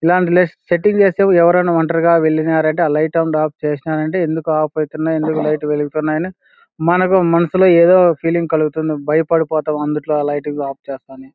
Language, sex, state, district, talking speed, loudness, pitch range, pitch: Telugu, male, Andhra Pradesh, Anantapur, 165 wpm, -15 LUFS, 155-170 Hz, 160 Hz